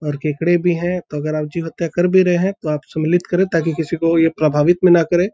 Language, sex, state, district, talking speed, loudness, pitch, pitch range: Hindi, male, Uttar Pradesh, Deoria, 280 wpm, -17 LUFS, 165 Hz, 155-175 Hz